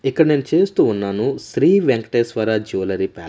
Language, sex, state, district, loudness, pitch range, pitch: Telugu, male, Andhra Pradesh, Manyam, -18 LUFS, 100-135 Hz, 115 Hz